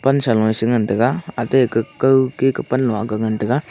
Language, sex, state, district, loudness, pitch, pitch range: Wancho, male, Arunachal Pradesh, Longding, -18 LUFS, 120 Hz, 110-135 Hz